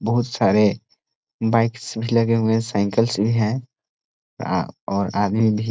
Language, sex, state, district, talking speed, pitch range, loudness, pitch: Hindi, male, Chhattisgarh, Korba, 135 wpm, 105-115 Hz, -21 LUFS, 110 Hz